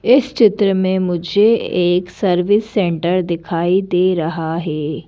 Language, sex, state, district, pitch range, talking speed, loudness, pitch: Hindi, female, Madhya Pradesh, Bhopal, 170-200 Hz, 130 wpm, -16 LUFS, 180 Hz